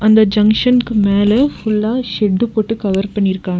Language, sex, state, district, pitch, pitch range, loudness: Tamil, female, Tamil Nadu, Nilgiris, 215 Hz, 200-225 Hz, -14 LUFS